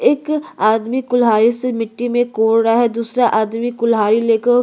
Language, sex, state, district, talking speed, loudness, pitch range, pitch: Hindi, female, Chhattisgarh, Korba, 205 wpm, -16 LUFS, 225-245 Hz, 235 Hz